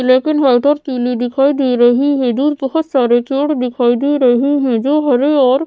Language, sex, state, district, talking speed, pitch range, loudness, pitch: Hindi, female, Odisha, Sambalpur, 200 wpm, 245-285 Hz, -14 LUFS, 265 Hz